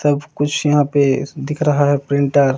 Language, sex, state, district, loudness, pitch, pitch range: Hindi, male, Madhya Pradesh, Umaria, -17 LUFS, 145 Hz, 140-145 Hz